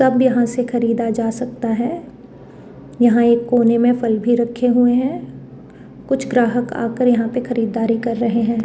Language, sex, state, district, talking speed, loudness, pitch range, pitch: Hindi, female, Rajasthan, Jaipur, 175 wpm, -17 LUFS, 230-245 Hz, 240 Hz